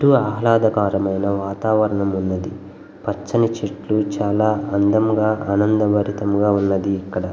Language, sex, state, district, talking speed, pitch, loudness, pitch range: Telugu, male, Andhra Pradesh, Guntur, 90 wpm, 100 Hz, -19 LUFS, 100-110 Hz